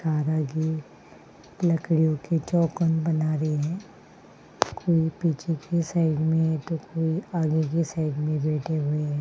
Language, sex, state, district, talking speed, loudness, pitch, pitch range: Hindi, female, Uttarakhand, Tehri Garhwal, 130 wpm, -26 LUFS, 160 Hz, 155-165 Hz